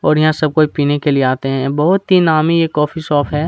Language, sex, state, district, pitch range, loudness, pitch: Hindi, male, Chhattisgarh, Kabirdham, 145-160 Hz, -14 LUFS, 150 Hz